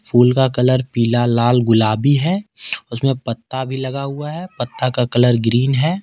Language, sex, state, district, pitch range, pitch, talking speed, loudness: Hindi, male, Jharkhand, Ranchi, 120-135 Hz, 125 Hz, 180 wpm, -17 LUFS